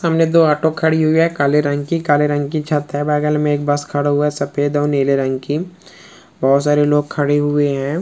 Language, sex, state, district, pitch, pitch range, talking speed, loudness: Hindi, male, Rajasthan, Churu, 145 Hz, 145-155 Hz, 240 wpm, -16 LUFS